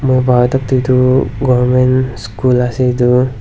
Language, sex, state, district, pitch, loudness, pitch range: Nagamese, male, Nagaland, Dimapur, 125 Hz, -13 LUFS, 125-130 Hz